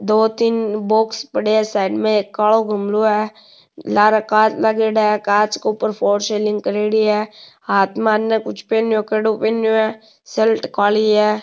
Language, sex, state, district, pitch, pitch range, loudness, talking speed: Rajasthani, male, Rajasthan, Nagaur, 215 Hz, 210-220 Hz, -17 LUFS, 175 wpm